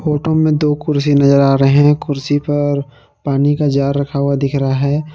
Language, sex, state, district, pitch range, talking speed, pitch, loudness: Hindi, male, Jharkhand, Palamu, 140-150 Hz, 210 wpm, 145 Hz, -14 LUFS